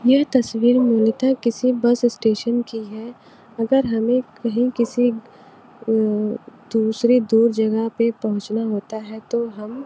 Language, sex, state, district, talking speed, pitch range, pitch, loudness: Hindi, female, Uttar Pradesh, Varanasi, 135 wpm, 220-245 Hz, 230 Hz, -20 LUFS